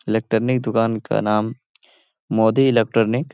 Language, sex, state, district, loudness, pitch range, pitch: Hindi, male, Bihar, Lakhisarai, -19 LUFS, 110-125 Hz, 115 Hz